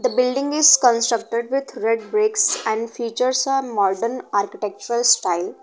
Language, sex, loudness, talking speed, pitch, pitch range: English, female, -19 LUFS, 130 wpm, 235 Hz, 225-270 Hz